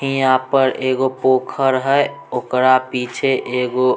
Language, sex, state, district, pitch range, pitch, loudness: Maithili, male, Bihar, Samastipur, 130-135 Hz, 130 Hz, -17 LUFS